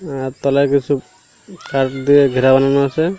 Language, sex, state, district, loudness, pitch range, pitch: Bengali, male, Odisha, Malkangiri, -15 LUFS, 135-140 Hz, 140 Hz